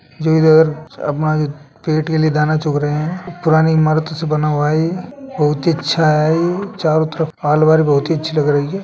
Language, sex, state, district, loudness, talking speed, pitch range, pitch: Hindi, male, Rajasthan, Nagaur, -16 LUFS, 205 wpm, 150-160 Hz, 155 Hz